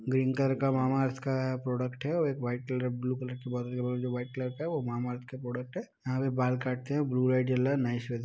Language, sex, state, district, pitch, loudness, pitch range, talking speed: Hindi, male, Bihar, Muzaffarpur, 130 Hz, -32 LUFS, 125-135 Hz, 240 wpm